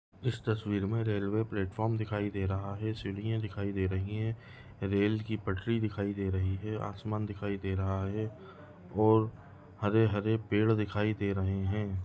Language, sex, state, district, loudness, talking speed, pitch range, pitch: Hindi, male, Chhattisgarh, Balrampur, -33 LUFS, 170 wpm, 100-110 Hz, 105 Hz